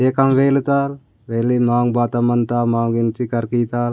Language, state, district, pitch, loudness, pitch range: Gondi, Chhattisgarh, Sukma, 120 Hz, -18 LUFS, 120-130 Hz